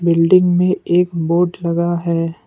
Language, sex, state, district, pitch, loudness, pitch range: Hindi, male, Assam, Kamrup Metropolitan, 170 Hz, -15 LUFS, 170-180 Hz